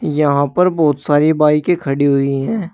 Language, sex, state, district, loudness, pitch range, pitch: Hindi, male, Uttar Pradesh, Shamli, -15 LUFS, 140-160 Hz, 150 Hz